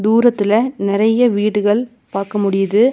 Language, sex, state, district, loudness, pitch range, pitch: Tamil, female, Tamil Nadu, Nilgiris, -16 LUFS, 205-235 Hz, 210 Hz